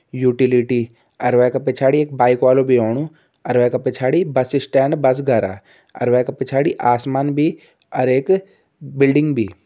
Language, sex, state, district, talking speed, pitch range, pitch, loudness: Hindi, male, Uttarakhand, Tehri Garhwal, 170 wpm, 125-140 Hz, 130 Hz, -17 LUFS